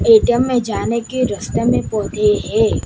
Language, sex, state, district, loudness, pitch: Hindi, male, Gujarat, Gandhinagar, -17 LUFS, 255 Hz